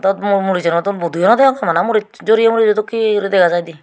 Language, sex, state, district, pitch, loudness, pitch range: Chakma, female, Tripura, Unakoti, 200 Hz, -14 LUFS, 175-220 Hz